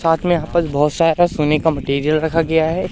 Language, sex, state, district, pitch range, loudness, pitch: Hindi, male, Madhya Pradesh, Katni, 150-170 Hz, -17 LUFS, 160 Hz